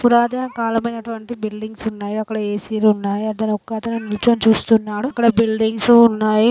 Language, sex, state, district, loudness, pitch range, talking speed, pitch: Telugu, female, Andhra Pradesh, Guntur, -18 LUFS, 215-230 Hz, 140 wpm, 220 Hz